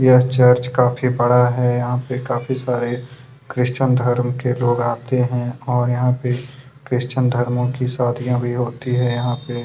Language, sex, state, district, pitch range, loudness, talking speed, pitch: Hindi, male, Chhattisgarh, Kabirdham, 120-125 Hz, -19 LUFS, 170 wpm, 125 Hz